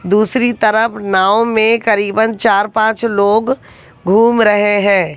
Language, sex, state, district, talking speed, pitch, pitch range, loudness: Hindi, female, Haryana, Jhajjar, 125 wpm, 215 Hz, 200-225 Hz, -13 LUFS